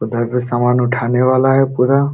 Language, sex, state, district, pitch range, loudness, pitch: Hindi, male, Uttar Pradesh, Jalaun, 120-135 Hz, -15 LUFS, 125 Hz